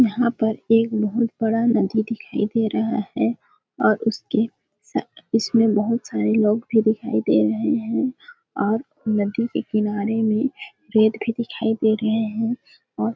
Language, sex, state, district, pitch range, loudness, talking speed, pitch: Hindi, female, Chhattisgarh, Balrampur, 215-235 Hz, -22 LUFS, 150 wpm, 225 Hz